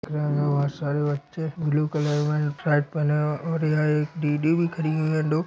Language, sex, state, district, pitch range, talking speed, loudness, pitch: Hindi, male, Chhattisgarh, Korba, 150-155 Hz, 195 wpm, -24 LUFS, 150 Hz